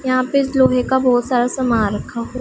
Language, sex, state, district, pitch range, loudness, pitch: Hindi, female, Punjab, Pathankot, 245-260 Hz, -17 LUFS, 255 Hz